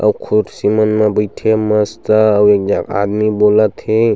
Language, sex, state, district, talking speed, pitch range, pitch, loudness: Chhattisgarhi, male, Chhattisgarh, Sukma, 185 wpm, 105-110 Hz, 105 Hz, -14 LUFS